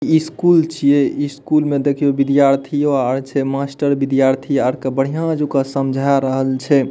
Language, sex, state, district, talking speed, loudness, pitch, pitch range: Maithili, male, Bihar, Madhepura, 165 wpm, -17 LUFS, 140 Hz, 135-145 Hz